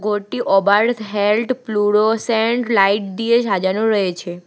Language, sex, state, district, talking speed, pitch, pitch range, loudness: Bengali, female, West Bengal, Alipurduar, 120 wpm, 210 Hz, 195-225 Hz, -17 LUFS